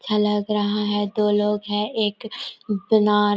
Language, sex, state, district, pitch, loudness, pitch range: Hindi, female, Chhattisgarh, Korba, 210 Hz, -22 LUFS, 205-210 Hz